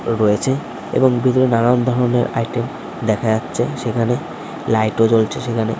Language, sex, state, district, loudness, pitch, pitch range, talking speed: Bengali, male, West Bengal, Kolkata, -18 LUFS, 120 Hz, 110-125 Hz, 135 wpm